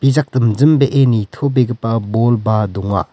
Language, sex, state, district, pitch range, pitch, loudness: Garo, male, Meghalaya, West Garo Hills, 110-135 Hz, 120 Hz, -15 LUFS